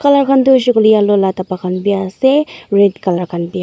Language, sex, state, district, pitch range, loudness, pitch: Nagamese, female, Nagaland, Dimapur, 185-265 Hz, -13 LUFS, 200 Hz